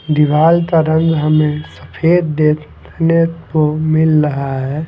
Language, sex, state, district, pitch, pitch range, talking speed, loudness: Hindi, male, Delhi, New Delhi, 155 Hz, 150-160 Hz, 125 wpm, -14 LUFS